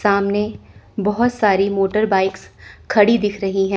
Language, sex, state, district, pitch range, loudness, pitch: Hindi, female, Chandigarh, Chandigarh, 195-210 Hz, -18 LUFS, 205 Hz